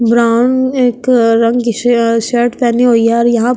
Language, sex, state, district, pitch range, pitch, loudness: Hindi, female, Delhi, New Delhi, 230-245 Hz, 240 Hz, -11 LUFS